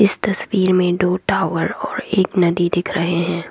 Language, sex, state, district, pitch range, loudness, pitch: Hindi, female, Assam, Kamrup Metropolitan, 175-195 Hz, -18 LUFS, 185 Hz